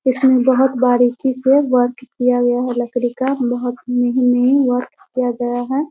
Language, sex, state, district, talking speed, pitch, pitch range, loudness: Hindi, female, Bihar, Muzaffarpur, 175 wpm, 250 Hz, 245-260 Hz, -16 LUFS